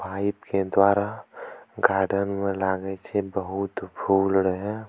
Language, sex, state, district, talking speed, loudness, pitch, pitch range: Angika, male, Bihar, Bhagalpur, 125 wpm, -25 LUFS, 95 Hz, 95-100 Hz